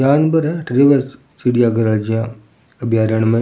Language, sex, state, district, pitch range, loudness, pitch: Rajasthani, male, Rajasthan, Churu, 115-135 Hz, -16 LUFS, 120 Hz